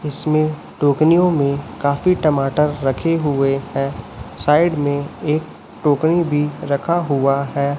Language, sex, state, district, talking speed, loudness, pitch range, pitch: Hindi, male, Chhattisgarh, Raipur, 125 wpm, -18 LUFS, 140-155 Hz, 145 Hz